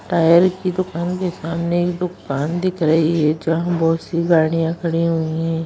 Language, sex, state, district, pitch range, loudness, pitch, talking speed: Hindi, female, Bihar, Bhagalpur, 165-175 Hz, -19 LUFS, 165 Hz, 180 wpm